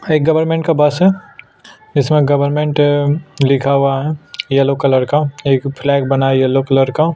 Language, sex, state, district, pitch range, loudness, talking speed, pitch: Hindi, male, Chhattisgarh, Sukma, 135-150 Hz, -14 LUFS, 170 wpm, 145 Hz